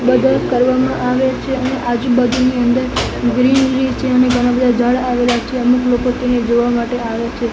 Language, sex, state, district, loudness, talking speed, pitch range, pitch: Gujarati, male, Gujarat, Gandhinagar, -15 LUFS, 185 wpm, 245-255 Hz, 250 Hz